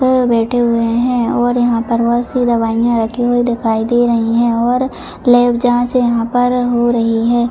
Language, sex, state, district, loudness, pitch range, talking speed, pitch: Hindi, female, Jharkhand, Jamtara, -14 LUFS, 235-245 Hz, 190 wpm, 240 Hz